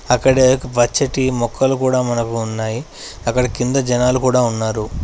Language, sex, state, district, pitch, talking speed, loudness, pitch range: Telugu, male, Telangana, Adilabad, 125 Hz, 145 wpm, -17 LUFS, 115-130 Hz